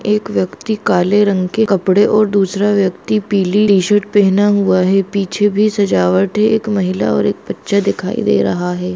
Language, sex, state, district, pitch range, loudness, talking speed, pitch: Hindi, female, Jharkhand, Jamtara, 190-210 Hz, -14 LUFS, 180 wpm, 200 Hz